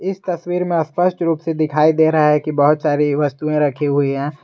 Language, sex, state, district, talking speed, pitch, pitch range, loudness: Hindi, male, Jharkhand, Garhwa, 230 wpm, 155 Hz, 150-165 Hz, -17 LUFS